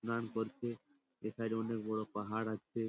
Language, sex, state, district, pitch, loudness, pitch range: Bengali, male, West Bengal, Purulia, 115 Hz, -40 LUFS, 110-115 Hz